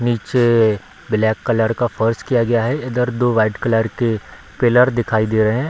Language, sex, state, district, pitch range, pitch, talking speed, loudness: Hindi, male, Bihar, Darbhanga, 110-120 Hz, 115 Hz, 190 wpm, -17 LUFS